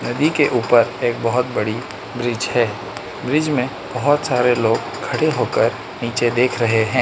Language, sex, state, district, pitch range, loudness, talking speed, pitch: Hindi, male, Manipur, Imphal West, 115-130 Hz, -19 LUFS, 160 wpm, 120 Hz